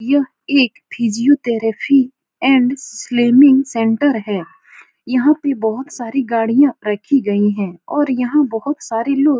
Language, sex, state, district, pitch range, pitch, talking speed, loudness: Hindi, female, Uttar Pradesh, Etah, 225-280 Hz, 250 Hz, 135 wpm, -16 LUFS